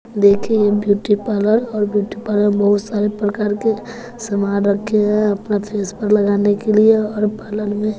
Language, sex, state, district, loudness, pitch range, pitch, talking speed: Hindi, female, Bihar, West Champaran, -17 LUFS, 205-215 Hz, 210 Hz, 180 wpm